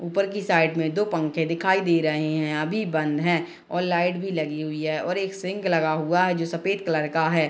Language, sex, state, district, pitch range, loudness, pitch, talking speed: Hindi, female, Bihar, Gopalganj, 155-185 Hz, -24 LUFS, 165 Hz, 250 wpm